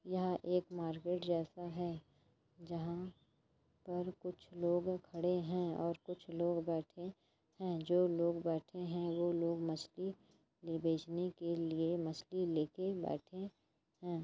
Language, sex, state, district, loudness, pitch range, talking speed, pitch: Hindi, female, Chhattisgarh, Raigarh, -40 LUFS, 165-180 Hz, 125 wpm, 175 Hz